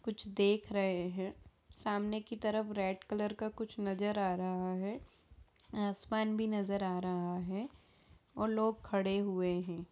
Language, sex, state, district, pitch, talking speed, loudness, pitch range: Hindi, female, Bihar, Gaya, 200 Hz, 165 wpm, -37 LUFS, 185-215 Hz